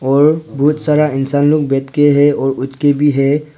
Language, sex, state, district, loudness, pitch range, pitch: Hindi, male, Arunachal Pradesh, Papum Pare, -13 LUFS, 135-150 Hz, 145 Hz